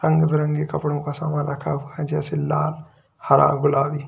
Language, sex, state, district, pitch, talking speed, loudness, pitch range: Hindi, male, Uttar Pradesh, Lalitpur, 150 Hz, 175 wpm, -21 LUFS, 145-150 Hz